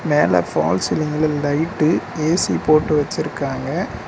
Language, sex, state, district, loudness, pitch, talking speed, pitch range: Tamil, male, Tamil Nadu, Nilgiris, -19 LUFS, 155 Hz, 105 wpm, 150-160 Hz